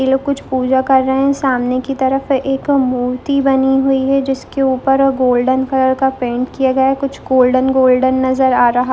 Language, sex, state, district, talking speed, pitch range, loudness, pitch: Hindi, female, Chhattisgarh, Korba, 210 wpm, 255-270 Hz, -14 LUFS, 265 Hz